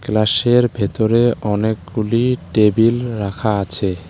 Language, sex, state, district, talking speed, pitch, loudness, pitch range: Bengali, male, West Bengal, Alipurduar, 90 wpm, 110 Hz, -17 LUFS, 100-120 Hz